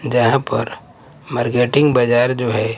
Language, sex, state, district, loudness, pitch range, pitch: Hindi, male, Punjab, Pathankot, -16 LUFS, 115-130 Hz, 120 Hz